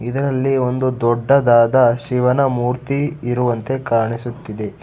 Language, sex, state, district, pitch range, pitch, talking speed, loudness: Kannada, male, Karnataka, Bangalore, 120-135 Hz, 125 Hz, 85 wpm, -17 LUFS